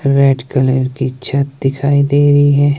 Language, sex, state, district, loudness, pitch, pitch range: Hindi, male, Himachal Pradesh, Shimla, -13 LUFS, 140 Hz, 130-140 Hz